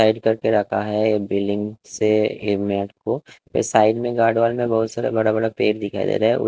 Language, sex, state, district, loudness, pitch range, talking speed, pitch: Hindi, male, Chhattisgarh, Raipur, -20 LUFS, 105-110 Hz, 215 wpm, 110 Hz